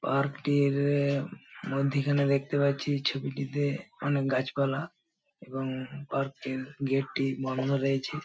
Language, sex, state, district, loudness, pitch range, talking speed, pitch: Bengali, male, West Bengal, Paschim Medinipur, -29 LUFS, 135-145 Hz, 110 wpm, 140 Hz